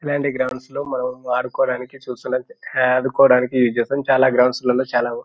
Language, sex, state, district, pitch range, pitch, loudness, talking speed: Telugu, male, Telangana, Nalgonda, 125-135 Hz, 130 Hz, -19 LUFS, 150 wpm